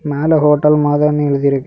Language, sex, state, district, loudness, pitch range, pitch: Tamil, male, Tamil Nadu, Kanyakumari, -13 LUFS, 145-150 Hz, 150 Hz